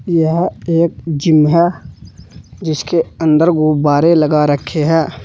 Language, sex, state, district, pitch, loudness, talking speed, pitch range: Hindi, male, Uttar Pradesh, Saharanpur, 155 Hz, -13 LUFS, 115 wpm, 145-165 Hz